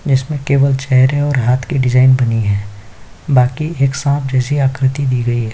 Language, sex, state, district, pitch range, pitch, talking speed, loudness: Hindi, male, Chhattisgarh, Kabirdham, 125-140 Hz, 130 Hz, 195 wpm, -14 LUFS